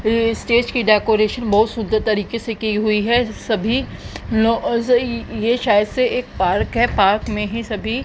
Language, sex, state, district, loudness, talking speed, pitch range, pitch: Hindi, female, Haryana, Jhajjar, -18 LUFS, 165 wpm, 215-235 Hz, 225 Hz